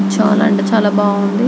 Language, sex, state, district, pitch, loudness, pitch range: Telugu, female, Andhra Pradesh, Anantapur, 205 Hz, -13 LUFS, 200-215 Hz